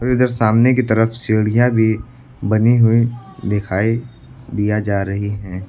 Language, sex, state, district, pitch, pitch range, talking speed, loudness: Hindi, male, Uttar Pradesh, Lucknow, 110 Hz, 105-120 Hz, 145 wpm, -16 LUFS